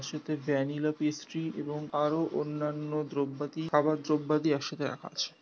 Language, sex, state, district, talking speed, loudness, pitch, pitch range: Bengali, male, West Bengal, North 24 Parganas, 145 wpm, -32 LUFS, 150 Hz, 145-150 Hz